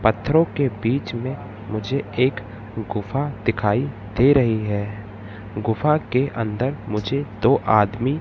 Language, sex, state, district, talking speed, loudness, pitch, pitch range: Hindi, male, Madhya Pradesh, Katni, 125 wpm, -22 LUFS, 115 Hz, 105-135 Hz